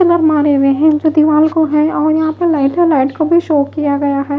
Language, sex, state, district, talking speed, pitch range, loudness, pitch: Hindi, female, Odisha, Malkangiri, 260 wpm, 285-315 Hz, -12 LUFS, 305 Hz